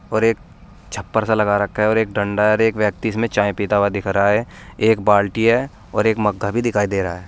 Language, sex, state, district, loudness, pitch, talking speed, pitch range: Hindi, male, Uttar Pradesh, Saharanpur, -18 LUFS, 105 Hz, 265 wpm, 100-110 Hz